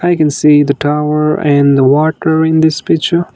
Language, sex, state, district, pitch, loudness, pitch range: English, male, Nagaland, Dimapur, 150 Hz, -11 LUFS, 145-160 Hz